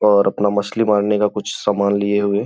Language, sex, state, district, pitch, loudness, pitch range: Hindi, male, Uttar Pradesh, Gorakhpur, 105 Hz, -18 LUFS, 100-105 Hz